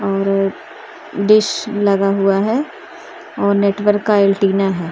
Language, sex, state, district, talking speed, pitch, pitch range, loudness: Hindi, female, Maharashtra, Mumbai Suburban, 135 wpm, 200 Hz, 195-210 Hz, -16 LUFS